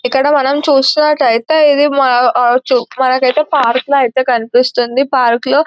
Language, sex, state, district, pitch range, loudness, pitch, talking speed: Telugu, female, Telangana, Nalgonda, 250-285 Hz, -11 LUFS, 265 Hz, 150 wpm